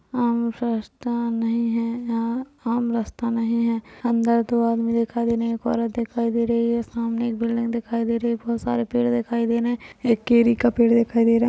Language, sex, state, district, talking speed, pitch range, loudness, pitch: Hindi, female, Bihar, Kishanganj, 230 wpm, 230-235 Hz, -22 LUFS, 235 Hz